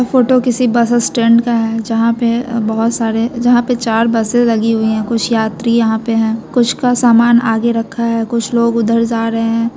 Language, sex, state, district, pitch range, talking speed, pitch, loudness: Hindi, female, Bihar, Muzaffarpur, 225-240 Hz, 210 wpm, 230 Hz, -13 LUFS